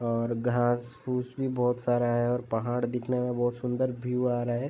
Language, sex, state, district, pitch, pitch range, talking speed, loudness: Hindi, male, Uttar Pradesh, Jalaun, 125 Hz, 120-125 Hz, 215 wpm, -29 LUFS